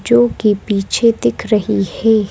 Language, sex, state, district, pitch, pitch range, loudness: Hindi, female, Madhya Pradesh, Bhopal, 205 Hz, 190-220 Hz, -15 LUFS